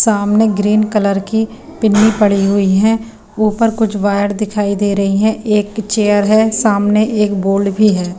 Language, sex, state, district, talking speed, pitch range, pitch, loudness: Hindi, female, Himachal Pradesh, Shimla, 170 wpm, 200-220 Hz, 210 Hz, -13 LUFS